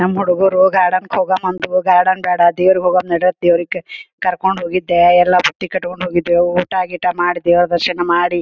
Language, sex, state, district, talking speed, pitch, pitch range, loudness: Kannada, female, Karnataka, Gulbarga, 170 wpm, 180 Hz, 175-185 Hz, -14 LUFS